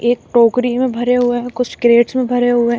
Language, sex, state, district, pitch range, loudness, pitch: Hindi, female, Uttar Pradesh, Shamli, 235-250 Hz, -14 LUFS, 245 Hz